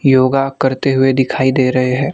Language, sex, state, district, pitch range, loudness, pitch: Hindi, male, Maharashtra, Gondia, 130-135 Hz, -14 LUFS, 130 Hz